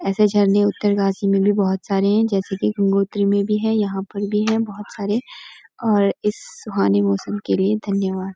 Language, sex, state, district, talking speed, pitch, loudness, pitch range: Hindi, female, Uttarakhand, Uttarkashi, 200 wpm, 200 Hz, -20 LUFS, 195-210 Hz